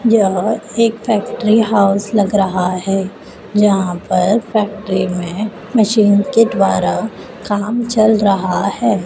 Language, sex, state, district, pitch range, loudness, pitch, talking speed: Hindi, female, Madhya Pradesh, Dhar, 195-220 Hz, -15 LUFS, 205 Hz, 120 wpm